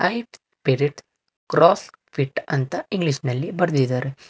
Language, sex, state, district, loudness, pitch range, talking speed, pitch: Kannada, male, Karnataka, Bangalore, -22 LUFS, 135-175 Hz, 100 wpm, 145 Hz